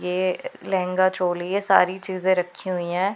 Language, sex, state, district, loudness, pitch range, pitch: Hindi, female, Punjab, Pathankot, -23 LUFS, 180-190 Hz, 185 Hz